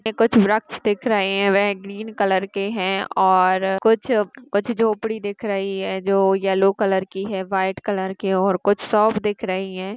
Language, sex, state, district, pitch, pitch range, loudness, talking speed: Hindi, female, Bihar, Madhepura, 200 Hz, 190-215 Hz, -20 LUFS, 200 wpm